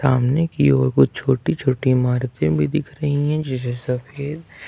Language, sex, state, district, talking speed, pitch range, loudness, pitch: Hindi, male, Jharkhand, Ranchi, 165 wpm, 125-145 Hz, -20 LUFS, 130 Hz